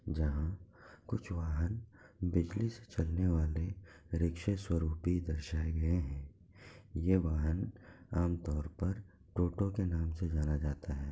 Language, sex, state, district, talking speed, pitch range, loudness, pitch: Hindi, male, Bihar, Kishanganj, 135 wpm, 80-95 Hz, -36 LUFS, 85 Hz